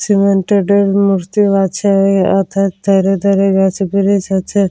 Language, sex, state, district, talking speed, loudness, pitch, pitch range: Bengali, female, West Bengal, Jalpaiguri, 165 wpm, -13 LUFS, 195 Hz, 195-200 Hz